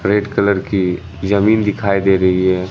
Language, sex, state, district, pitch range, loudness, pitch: Hindi, male, Bihar, Katihar, 95-100 Hz, -15 LUFS, 95 Hz